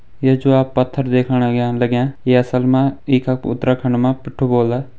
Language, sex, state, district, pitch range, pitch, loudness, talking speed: Hindi, male, Uttarakhand, Tehri Garhwal, 125-130 Hz, 125 Hz, -16 LUFS, 180 wpm